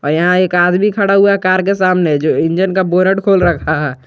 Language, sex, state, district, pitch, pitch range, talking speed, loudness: Hindi, male, Jharkhand, Garhwa, 185 Hz, 170-190 Hz, 250 wpm, -12 LUFS